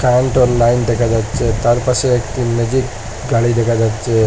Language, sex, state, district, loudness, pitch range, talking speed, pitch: Bengali, male, Assam, Hailakandi, -15 LUFS, 115-125 Hz, 155 wpm, 120 Hz